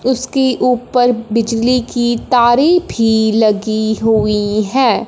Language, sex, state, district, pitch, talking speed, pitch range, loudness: Hindi, female, Punjab, Fazilka, 235 Hz, 105 wpm, 220-250 Hz, -14 LUFS